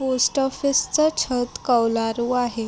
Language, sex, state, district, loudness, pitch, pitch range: Marathi, female, Maharashtra, Sindhudurg, -21 LUFS, 250 Hz, 235-270 Hz